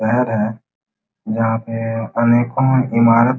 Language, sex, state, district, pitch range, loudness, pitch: Hindi, male, Uttar Pradesh, Muzaffarnagar, 115-120 Hz, -17 LUFS, 115 Hz